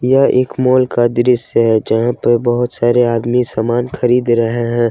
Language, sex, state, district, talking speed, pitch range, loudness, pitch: Hindi, male, Jharkhand, Ranchi, 185 wpm, 115-125 Hz, -14 LUFS, 120 Hz